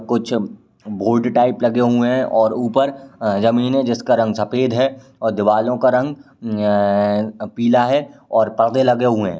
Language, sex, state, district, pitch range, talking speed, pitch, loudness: Hindi, male, Uttar Pradesh, Ghazipur, 110-125 Hz, 170 wpm, 120 Hz, -17 LUFS